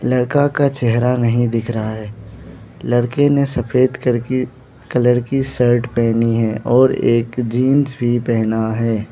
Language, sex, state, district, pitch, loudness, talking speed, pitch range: Hindi, male, Arunachal Pradesh, Lower Dibang Valley, 120 Hz, -16 LUFS, 145 wpm, 115-130 Hz